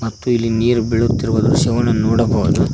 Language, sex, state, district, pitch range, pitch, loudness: Kannada, male, Karnataka, Koppal, 110-120 Hz, 115 Hz, -16 LUFS